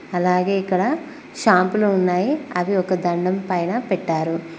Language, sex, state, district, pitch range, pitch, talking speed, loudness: Telugu, female, Telangana, Mahabubabad, 180-210 Hz, 185 Hz, 120 wpm, -20 LUFS